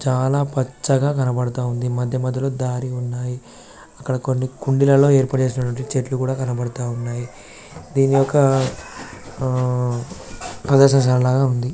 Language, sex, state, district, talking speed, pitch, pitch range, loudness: Telugu, male, Telangana, Karimnagar, 105 wpm, 130 Hz, 125-135 Hz, -19 LUFS